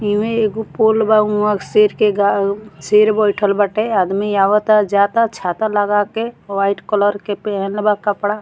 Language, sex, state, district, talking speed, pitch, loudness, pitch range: Bhojpuri, female, Bihar, Muzaffarpur, 170 wpm, 210 Hz, -16 LUFS, 200-215 Hz